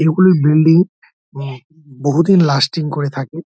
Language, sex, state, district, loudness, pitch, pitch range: Bengali, male, West Bengal, Dakshin Dinajpur, -14 LUFS, 155 Hz, 140-165 Hz